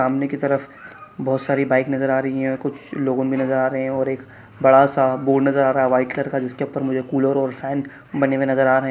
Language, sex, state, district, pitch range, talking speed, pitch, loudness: Hindi, male, Chhattisgarh, Kabirdham, 130-140 Hz, 275 wpm, 135 Hz, -20 LUFS